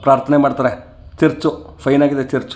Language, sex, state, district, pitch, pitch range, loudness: Kannada, male, Karnataka, Chamarajanagar, 135 Hz, 125-145 Hz, -16 LUFS